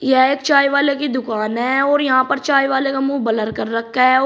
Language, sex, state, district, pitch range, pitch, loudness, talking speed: Hindi, male, Uttar Pradesh, Shamli, 255-280 Hz, 265 Hz, -17 LUFS, 265 wpm